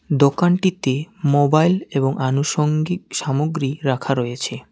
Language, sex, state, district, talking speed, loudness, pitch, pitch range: Bengali, male, West Bengal, Alipurduar, 90 wpm, -19 LUFS, 145 Hz, 135-165 Hz